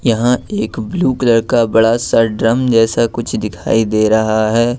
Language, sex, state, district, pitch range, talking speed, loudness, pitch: Hindi, male, Jharkhand, Ranchi, 110-120 Hz, 175 wpm, -14 LUFS, 115 Hz